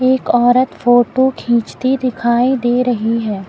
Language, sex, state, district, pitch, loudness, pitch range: Hindi, female, Uttar Pradesh, Lucknow, 245 Hz, -14 LUFS, 235-255 Hz